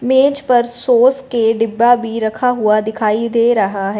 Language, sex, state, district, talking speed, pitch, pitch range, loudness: Hindi, female, Punjab, Fazilka, 180 wpm, 235 Hz, 220-245 Hz, -14 LUFS